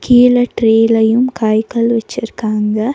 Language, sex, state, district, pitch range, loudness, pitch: Tamil, female, Tamil Nadu, Nilgiris, 220-245 Hz, -13 LUFS, 230 Hz